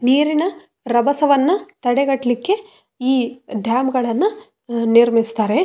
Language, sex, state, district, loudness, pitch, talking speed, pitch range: Kannada, female, Karnataka, Raichur, -18 LUFS, 260 Hz, 75 wpm, 235-335 Hz